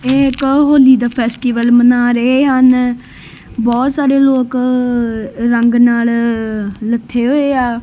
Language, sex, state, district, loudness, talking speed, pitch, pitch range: Punjabi, male, Punjab, Kapurthala, -12 LUFS, 130 wpm, 245 Hz, 235-260 Hz